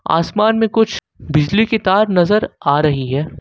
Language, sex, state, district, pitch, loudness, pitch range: Hindi, male, Jharkhand, Ranchi, 175 Hz, -15 LUFS, 150-215 Hz